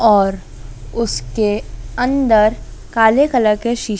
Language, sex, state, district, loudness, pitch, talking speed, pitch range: Hindi, female, Madhya Pradesh, Dhar, -16 LUFS, 215 Hz, 105 wpm, 200-235 Hz